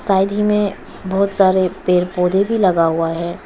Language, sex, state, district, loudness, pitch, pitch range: Hindi, female, Arunachal Pradesh, Papum Pare, -16 LUFS, 190 Hz, 180-200 Hz